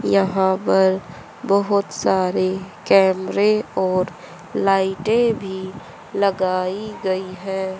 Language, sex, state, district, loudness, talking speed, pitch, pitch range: Hindi, female, Haryana, Jhajjar, -20 LUFS, 85 wpm, 190 Hz, 185-195 Hz